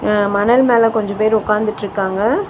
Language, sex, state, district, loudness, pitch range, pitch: Tamil, female, Tamil Nadu, Chennai, -15 LUFS, 205-225 Hz, 215 Hz